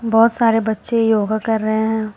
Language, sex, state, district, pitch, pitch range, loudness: Hindi, female, Uttar Pradesh, Shamli, 220 Hz, 220-225 Hz, -17 LUFS